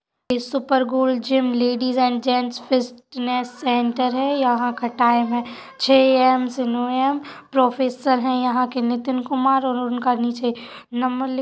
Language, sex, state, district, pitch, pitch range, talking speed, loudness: Hindi, female, Uttar Pradesh, Budaun, 250 Hz, 245-260 Hz, 170 wpm, -20 LUFS